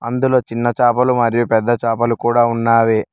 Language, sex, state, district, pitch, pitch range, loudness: Telugu, male, Telangana, Mahabubabad, 120 Hz, 115-120 Hz, -15 LUFS